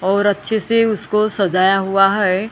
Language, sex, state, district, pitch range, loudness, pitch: Hindi, female, Maharashtra, Gondia, 195-215 Hz, -16 LUFS, 200 Hz